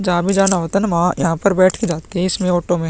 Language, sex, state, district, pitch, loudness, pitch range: Hindi, male, Bihar, Vaishali, 180 Hz, -17 LUFS, 175-195 Hz